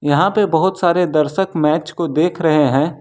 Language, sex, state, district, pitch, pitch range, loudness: Hindi, male, Jharkhand, Ranchi, 160 Hz, 150-175 Hz, -16 LUFS